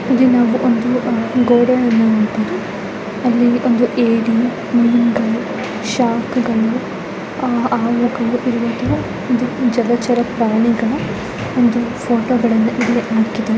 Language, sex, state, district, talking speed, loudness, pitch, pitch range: Kannada, female, Karnataka, Chamarajanagar, 100 wpm, -16 LUFS, 235 Hz, 225-245 Hz